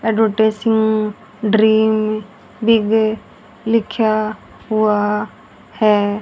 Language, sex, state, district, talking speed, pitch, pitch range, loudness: Hindi, female, Haryana, Rohtak, 60 wpm, 220 Hz, 215-220 Hz, -17 LUFS